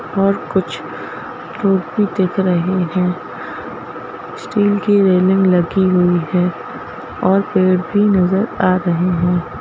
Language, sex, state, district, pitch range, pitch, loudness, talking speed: Hindi, female, Madhya Pradesh, Bhopal, 180-205 Hz, 185 Hz, -16 LUFS, 125 wpm